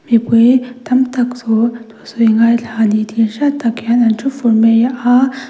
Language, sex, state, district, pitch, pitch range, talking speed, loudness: Mizo, female, Mizoram, Aizawl, 235 Hz, 225-250 Hz, 195 wpm, -13 LUFS